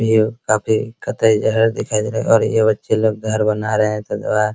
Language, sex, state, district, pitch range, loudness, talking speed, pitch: Hindi, male, Bihar, Araria, 105-110 Hz, -17 LUFS, 200 wpm, 110 Hz